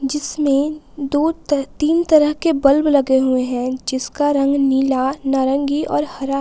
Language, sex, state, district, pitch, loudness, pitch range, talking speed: Hindi, female, Jharkhand, Palamu, 280 Hz, -17 LUFS, 270-295 Hz, 140 wpm